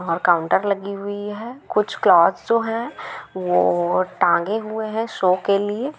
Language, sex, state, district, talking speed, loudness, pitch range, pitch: Hindi, female, Bihar, Gaya, 160 wpm, -20 LUFS, 185-225 Hz, 205 Hz